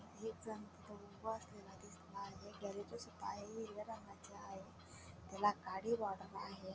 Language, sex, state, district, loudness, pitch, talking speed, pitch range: Marathi, female, Maharashtra, Dhule, -47 LUFS, 205 Hz, 135 wpm, 200-220 Hz